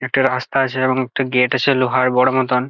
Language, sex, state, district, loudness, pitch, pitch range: Bengali, male, West Bengal, Jalpaiguri, -17 LUFS, 130 Hz, 125-130 Hz